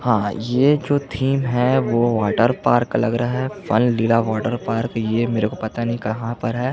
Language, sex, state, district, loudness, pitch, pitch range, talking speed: Hindi, male, Chhattisgarh, Jashpur, -20 LUFS, 120 Hz, 115-125 Hz, 215 wpm